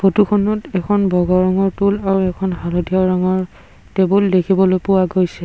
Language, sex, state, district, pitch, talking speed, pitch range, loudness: Assamese, male, Assam, Sonitpur, 190 Hz, 145 wpm, 185-195 Hz, -16 LUFS